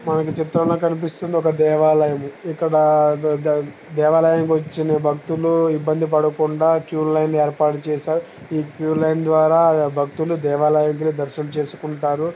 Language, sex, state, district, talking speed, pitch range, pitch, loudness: Telugu, male, Telangana, Nalgonda, 115 wpm, 150-160 Hz, 155 Hz, -19 LUFS